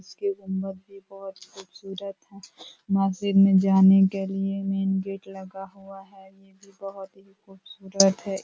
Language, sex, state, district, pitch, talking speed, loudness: Hindi, female, Uttar Pradesh, Ghazipur, 195 Hz, 180 wpm, -23 LUFS